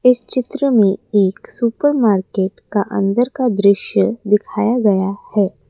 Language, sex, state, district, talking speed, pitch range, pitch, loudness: Hindi, female, Assam, Kamrup Metropolitan, 135 wpm, 200-245 Hz, 210 Hz, -16 LUFS